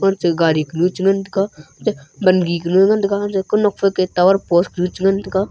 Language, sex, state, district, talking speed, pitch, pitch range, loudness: Wancho, male, Arunachal Pradesh, Longding, 195 wpm, 190 Hz, 175-195 Hz, -17 LUFS